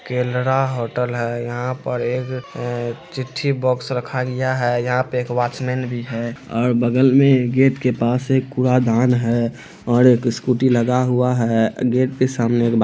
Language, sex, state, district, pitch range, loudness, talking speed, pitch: Hindi, male, Bihar, Araria, 120-130 Hz, -19 LUFS, 175 wpm, 125 Hz